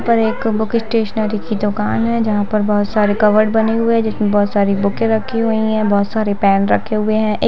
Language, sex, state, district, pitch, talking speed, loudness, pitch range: Hindi, female, Bihar, Jahanabad, 215 Hz, 235 wpm, -16 LUFS, 205-225 Hz